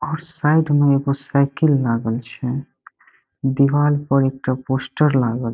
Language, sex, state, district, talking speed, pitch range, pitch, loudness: Maithili, male, Bihar, Saharsa, 150 wpm, 130-145 Hz, 140 Hz, -19 LUFS